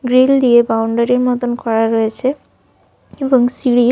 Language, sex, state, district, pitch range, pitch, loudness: Bengali, female, Jharkhand, Sahebganj, 230-255 Hz, 245 Hz, -14 LUFS